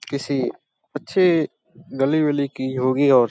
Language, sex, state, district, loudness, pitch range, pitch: Hindi, male, Uttar Pradesh, Deoria, -21 LUFS, 130-155 Hz, 140 Hz